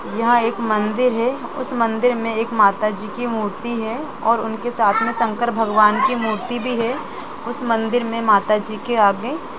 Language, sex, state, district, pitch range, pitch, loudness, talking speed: Hindi, female, Jharkhand, Jamtara, 220-240 Hz, 230 Hz, -19 LUFS, 175 wpm